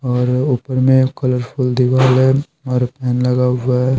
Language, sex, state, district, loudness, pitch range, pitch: Hindi, male, Bihar, Patna, -16 LUFS, 125-130 Hz, 130 Hz